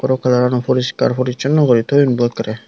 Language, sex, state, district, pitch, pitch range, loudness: Chakma, male, Tripura, Unakoti, 125 Hz, 120-130 Hz, -15 LUFS